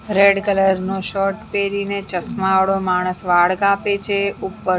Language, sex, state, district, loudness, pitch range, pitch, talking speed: Gujarati, female, Maharashtra, Mumbai Suburban, -18 LUFS, 190-200 Hz, 195 Hz, 165 wpm